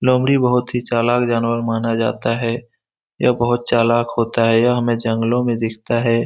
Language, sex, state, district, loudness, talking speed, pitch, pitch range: Hindi, male, Bihar, Saran, -18 LUFS, 180 wpm, 115 Hz, 115-120 Hz